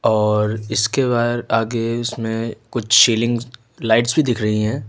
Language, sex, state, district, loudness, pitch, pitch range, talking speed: Hindi, male, Uttar Pradesh, Lucknow, -18 LUFS, 115 Hz, 110-120 Hz, 145 wpm